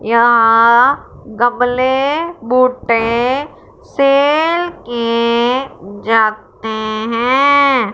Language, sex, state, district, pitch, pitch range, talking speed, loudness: Hindi, female, Punjab, Fazilka, 240 Hz, 230-270 Hz, 55 wpm, -13 LUFS